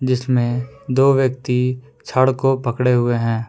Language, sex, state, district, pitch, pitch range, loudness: Hindi, male, Jharkhand, Palamu, 125 Hz, 125-130 Hz, -18 LUFS